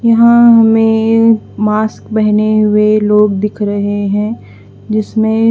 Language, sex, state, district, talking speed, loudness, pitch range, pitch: Hindi, female, Haryana, Charkhi Dadri, 110 wpm, -11 LUFS, 210-225 Hz, 215 Hz